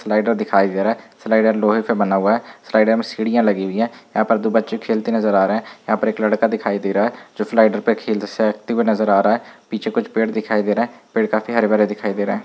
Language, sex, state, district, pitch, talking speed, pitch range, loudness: Hindi, male, Uttar Pradesh, Gorakhpur, 110 Hz, 280 wpm, 105-110 Hz, -18 LUFS